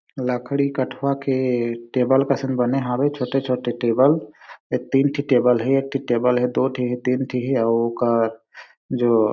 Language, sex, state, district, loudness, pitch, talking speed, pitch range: Chhattisgarhi, male, Chhattisgarh, Sarguja, -21 LUFS, 125 Hz, 165 wpm, 120-135 Hz